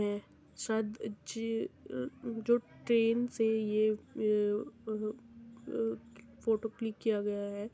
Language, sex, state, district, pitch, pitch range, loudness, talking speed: Hindi, female, Uttar Pradesh, Muzaffarnagar, 220 Hz, 205-230 Hz, -34 LUFS, 110 wpm